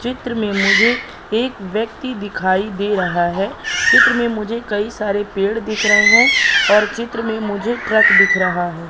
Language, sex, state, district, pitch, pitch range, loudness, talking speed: Hindi, male, Madhya Pradesh, Katni, 210 Hz, 195-230 Hz, -15 LUFS, 175 wpm